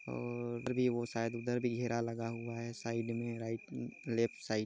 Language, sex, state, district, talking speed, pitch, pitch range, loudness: Hindi, male, Chhattisgarh, Jashpur, 205 wpm, 115 Hz, 115-120 Hz, -38 LUFS